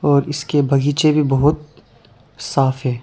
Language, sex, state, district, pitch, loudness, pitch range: Hindi, male, Arunachal Pradesh, Lower Dibang Valley, 140 Hz, -17 LUFS, 130-150 Hz